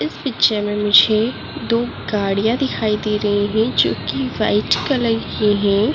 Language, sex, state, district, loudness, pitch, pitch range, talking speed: Hindi, female, Uttarakhand, Uttarkashi, -18 LUFS, 210 Hz, 200-225 Hz, 160 wpm